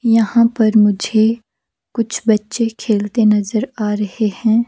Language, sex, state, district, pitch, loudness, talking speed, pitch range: Hindi, female, Himachal Pradesh, Shimla, 220 Hz, -16 LUFS, 130 wpm, 210-230 Hz